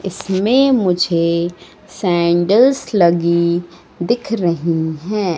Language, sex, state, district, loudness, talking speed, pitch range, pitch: Hindi, female, Madhya Pradesh, Katni, -16 LUFS, 80 wpm, 170-205 Hz, 175 Hz